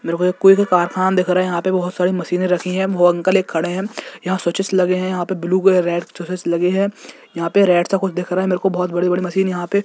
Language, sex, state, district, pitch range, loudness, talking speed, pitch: Hindi, male, Jharkhand, Jamtara, 175-190 Hz, -18 LUFS, 310 wpm, 180 Hz